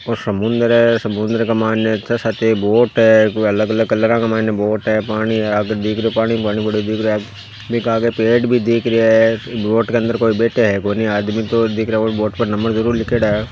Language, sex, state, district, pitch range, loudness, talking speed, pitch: Hindi, male, Rajasthan, Nagaur, 110-115 Hz, -16 LUFS, 240 wpm, 110 Hz